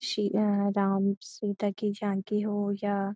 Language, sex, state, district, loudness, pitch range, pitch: Hindi, female, Uttarakhand, Uttarkashi, -29 LUFS, 200-210 Hz, 200 Hz